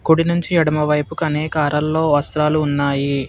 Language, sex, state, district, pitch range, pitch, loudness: Telugu, male, Telangana, Hyderabad, 145-160 Hz, 150 Hz, -18 LUFS